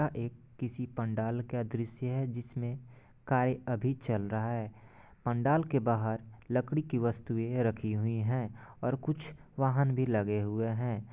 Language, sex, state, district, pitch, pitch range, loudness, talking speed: Hindi, male, Bihar, Gopalganj, 120 Hz, 115-130 Hz, -33 LUFS, 155 wpm